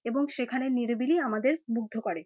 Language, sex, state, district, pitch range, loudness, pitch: Bengali, female, West Bengal, North 24 Parganas, 230-270 Hz, -29 LUFS, 250 Hz